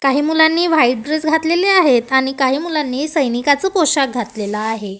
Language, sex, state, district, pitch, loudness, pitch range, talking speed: Marathi, female, Maharashtra, Gondia, 280 Hz, -15 LUFS, 245-315 Hz, 155 wpm